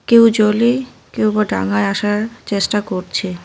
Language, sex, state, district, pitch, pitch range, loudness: Bengali, female, West Bengal, Cooch Behar, 210 Hz, 185-225 Hz, -16 LUFS